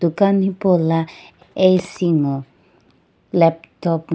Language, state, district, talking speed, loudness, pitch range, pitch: Sumi, Nagaland, Dimapur, 70 wpm, -18 LUFS, 160-185 Hz, 170 Hz